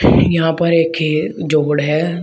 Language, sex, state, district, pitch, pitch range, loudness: Hindi, male, Uttar Pradesh, Shamli, 160 Hz, 150-165 Hz, -15 LUFS